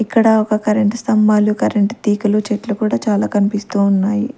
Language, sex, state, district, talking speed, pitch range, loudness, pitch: Telugu, female, Andhra Pradesh, Manyam, 150 wpm, 205-215 Hz, -16 LUFS, 210 Hz